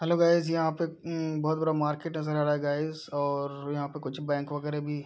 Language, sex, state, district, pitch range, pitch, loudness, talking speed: Hindi, male, Bihar, Araria, 145-160 Hz, 150 Hz, -30 LUFS, 250 wpm